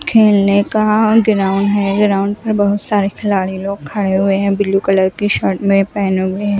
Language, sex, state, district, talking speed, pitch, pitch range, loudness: Hindi, female, Maharashtra, Mumbai Suburban, 180 wpm, 200 Hz, 195-205 Hz, -14 LUFS